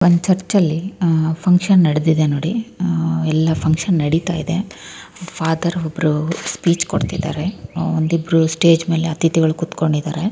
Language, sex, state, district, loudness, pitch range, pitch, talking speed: Kannada, female, Karnataka, Raichur, -17 LUFS, 160-180 Hz, 165 Hz, 135 wpm